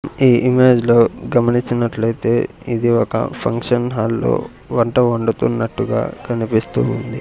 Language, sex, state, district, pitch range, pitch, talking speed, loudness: Telugu, male, Andhra Pradesh, Sri Satya Sai, 115-120 Hz, 120 Hz, 100 wpm, -17 LUFS